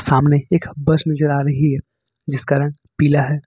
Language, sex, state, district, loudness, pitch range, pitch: Hindi, male, Jharkhand, Ranchi, -17 LUFS, 135-150 Hz, 145 Hz